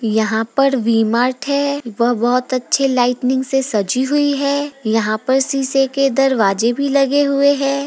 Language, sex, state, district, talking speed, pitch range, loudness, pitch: Hindi, female, Bihar, Gopalganj, 170 wpm, 235-275 Hz, -16 LUFS, 265 Hz